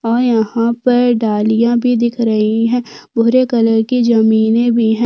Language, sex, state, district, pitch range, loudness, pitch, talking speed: Hindi, female, Chhattisgarh, Sukma, 225-240 Hz, -13 LUFS, 235 Hz, 155 wpm